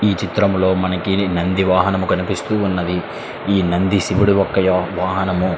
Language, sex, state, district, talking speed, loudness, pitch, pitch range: Telugu, male, Andhra Pradesh, Srikakulam, 120 wpm, -17 LUFS, 95 Hz, 90-100 Hz